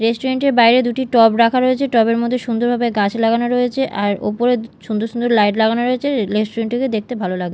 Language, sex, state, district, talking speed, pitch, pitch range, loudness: Bengali, female, Odisha, Malkangiri, 200 wpm, 235 Hz, 220-245 Hz, -16 LUFS